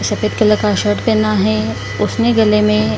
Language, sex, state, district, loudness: Hindi, female, Bihar, Kishanganj, -14 LUFS